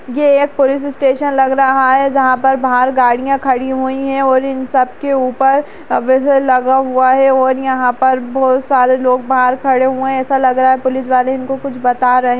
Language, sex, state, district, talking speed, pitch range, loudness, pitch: Kumaoni, female, Uttarakhand, Uttarkashi, 215 wpm, 255-270 Hz, -13 LUFS, 260 Hz